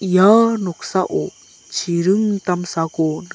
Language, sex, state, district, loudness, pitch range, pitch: Garo, male, Meghalaya, South Garo Hills, -18 LUFS, 170-200 Hz, 185 Hz